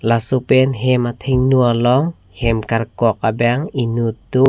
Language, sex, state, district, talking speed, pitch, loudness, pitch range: Karbi, male, Assam, Karbi Anglong, 135 wpm, 120 Hz, -17 LUFS, 115-130 Hz